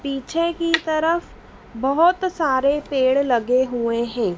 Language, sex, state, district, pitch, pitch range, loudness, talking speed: Hindi, female, Madhya Pradesh, Dhar, 275 Hz, 250-330 Hz, -20 LUFS, 125 wpm